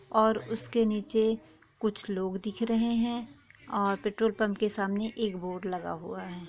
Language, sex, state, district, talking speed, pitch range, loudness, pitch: Hindi, female, Bihar, East Champaran, 165 wpm, 195-225 Hz, -30 LUFS, 215 Hz